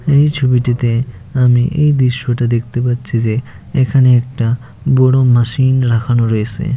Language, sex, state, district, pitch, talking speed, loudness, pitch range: Bengali, male, West Bengal, Malda, 125 Hz, 125 wpm, -14 LUFS, 120-130 Hz